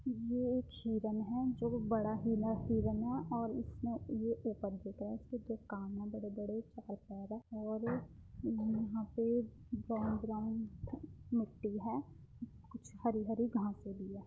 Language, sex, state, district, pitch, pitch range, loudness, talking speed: Hindi, female, Uttar Pradesh, Muzaffarnagar, 220 Hz, 215-235 Hz, -40 LUFS, 135 wpm